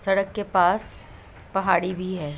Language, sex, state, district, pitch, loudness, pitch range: Hindi, female, Uttar Pradesh, Budaun, 185 Hz, -23 LUFS, 130-195 Hz